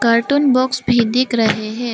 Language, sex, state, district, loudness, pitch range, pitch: Hindi, female, Arunachal Pradesh, Papum Pare, -16 LUFS, 230-255 Hz, 240 Hz